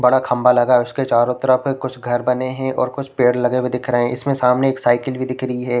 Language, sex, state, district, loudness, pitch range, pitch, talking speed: Hindi, male, Chhattisgarh, Raigarh, -18 LUFS, 125-130 Hz, 125 Hz, 280 wpm